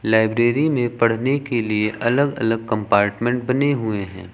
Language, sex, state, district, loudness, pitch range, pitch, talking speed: Hindi, male, Uttar Pradesh, Lucknow, -20 LUFS, 110-125 Hz, 115 Hz, 150 wpm